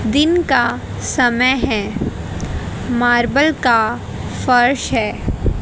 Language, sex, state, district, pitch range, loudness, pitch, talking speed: Hindi, female, Haryana, Rohtak, 245-280 Hz, -17 LUFS, 250 Hz, 95 wpm